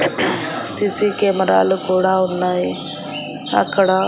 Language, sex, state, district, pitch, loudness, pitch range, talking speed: Telugu, female, Andhra Pradesh, Annamaya, 190 Hz, -18 LUFS, 180-195 Hz, 75 wpm